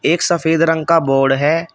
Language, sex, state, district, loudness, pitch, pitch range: Hindi, male, Uttar Pradesh, Shamli, -15 LUFS, 160 Hz, 145-165 Hz